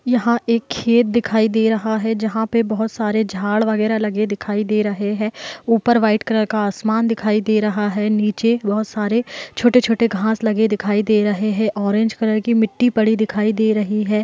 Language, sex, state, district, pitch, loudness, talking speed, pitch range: Hindi, male, Jharkhand, Jamtara, 220 Hz, -18 LUFS, 185 wpm, 210-225 Hz